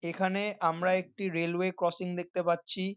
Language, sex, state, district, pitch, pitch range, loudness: Bengali, male, West Bengal, North 24 Parganas, 180 Hz, 170-190 Hz, -31 LUFS